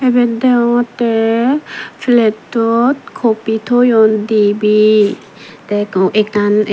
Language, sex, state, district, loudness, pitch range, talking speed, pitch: Chakma, female, Tripura, Dhalai, -13 LUFS, 210-245 Hz, 80 wpm, 225 Hz